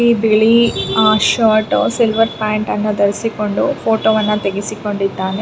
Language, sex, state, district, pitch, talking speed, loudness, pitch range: Kannada, female, Karnataka, Raichur, 215 Hz, 110 wpm, -15 LUFS, 205-225 Hz